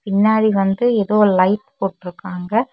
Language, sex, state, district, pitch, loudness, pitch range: Tamil, female, Tamil Nadu, Kanyakumari, 205 Hz, -17 LUFS, 195-220 Hz